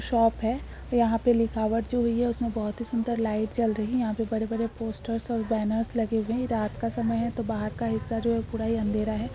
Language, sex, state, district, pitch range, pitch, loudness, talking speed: Hindi, female, Uttar Pradesh, Jalaun, 220-235 Hz, 230 Hz, -28 LUFS, 280 wpm